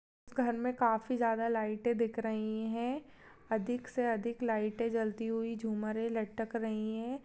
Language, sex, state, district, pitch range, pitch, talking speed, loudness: Hindi, female, Bihar, Saharsa, 220-240 Hz, 230 Hz, 155 wpm, -35 LUFS